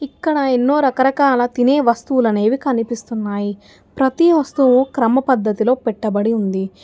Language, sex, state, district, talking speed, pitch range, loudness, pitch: Telugu, female, Telangana, Hyderabad, 105 wpm, 220-270 Hz, -16 LUFS, 250 Hz